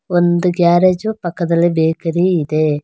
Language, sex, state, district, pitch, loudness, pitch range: Kannada, female, Karnataka, Bangalore, 175 Hz, -15 LUFS, 165-180 Hz